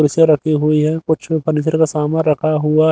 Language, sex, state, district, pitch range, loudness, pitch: Hindi, male, Haryana, Jhajjar, 150-160 Hz, -15 LUFS, 155 Hz